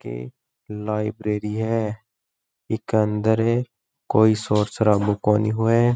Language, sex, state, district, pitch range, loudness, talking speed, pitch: Rajasthani, male, Rajasthan, Churu, 105-115 Hz, -22 LUFS, 100 wpm, 110 Hz